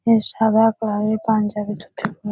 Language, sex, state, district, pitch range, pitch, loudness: Bengali, female, West Bengal, Purulia, 210-220 Hz, 215 Hz, -20 LUFS